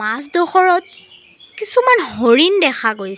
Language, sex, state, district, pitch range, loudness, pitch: Assamese, female, Assam, Sonitpur, 235-380 Hz, -14 LUFS, 345 Hz